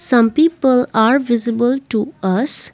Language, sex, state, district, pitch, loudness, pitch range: English, female, Assam, Kamrup Metropolitan, 240 Hz, -15 LUFS, 230-270 Hz